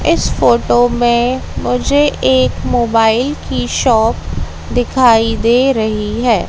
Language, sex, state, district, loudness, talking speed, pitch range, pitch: Hindi, female, Madhya Pradesh, Katni, -13 LUFS, 110 wpm, 225-245 Hz, 235 Hz